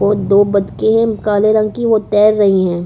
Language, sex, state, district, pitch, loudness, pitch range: Hindi, female, Chhattisgarh, Korba, 210 Hz, -13 LUFS, 200-215 Hz